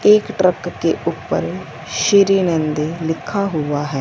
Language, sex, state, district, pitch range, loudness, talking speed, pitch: Hindi, female, Punjab, Fazilka, 150-195 Hz, -18 LUFS, 135 wpm, 170 Hz